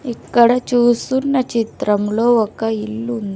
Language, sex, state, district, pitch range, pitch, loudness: Telugu, female, Andhra Pradesh, Sri Satya Sai, 220-245 Hz, 235 Hz, -17 LUFS